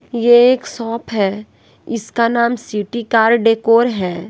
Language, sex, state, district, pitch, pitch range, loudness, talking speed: Hindi, female, Bihar, West Champaran, 230 Hz, 215-235 Hz, -15 LUFS, 140 wpm